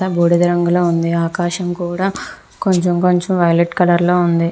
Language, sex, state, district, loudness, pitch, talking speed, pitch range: Telugu, female, Andhra Pradesh, Visakhapatnam, -15 LUFS, 175 Hz, 145 wpm, 170-180 Hz